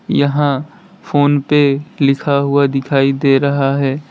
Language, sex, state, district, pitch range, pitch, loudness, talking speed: Hindi, male, Uttar Pradesh, Lalitpur, 135-145 Hz, 140 Hz, -14 LUFS, 115 wpm